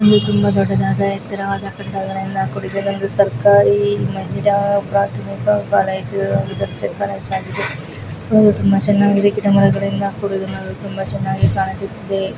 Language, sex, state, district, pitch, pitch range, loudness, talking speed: Kannada, female, Karnataka, Chamarajanagar, 195 Hz, 190-200 Hz, -17 LUFS, 95 wpm